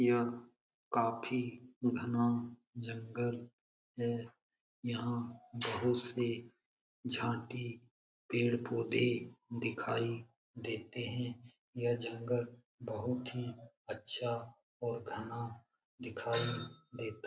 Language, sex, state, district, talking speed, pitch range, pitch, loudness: Hindi, male, Bihar, Jamui, 80 wpm, 115-120 Hz, 120 Hz, -38 LUFS